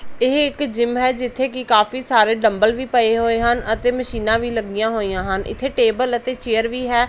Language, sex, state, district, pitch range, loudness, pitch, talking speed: Punjabi, female, Punjab, Pathankot, 225-255 Hz, -18 LUFS, 235 Hz, 210 wpm